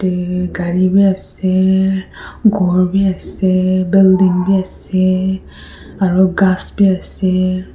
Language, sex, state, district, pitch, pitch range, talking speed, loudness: Nagamese, female, Nagaland, Kohima, 185 Hz, 185-190 Hz, 100 wpm, -14 LUFS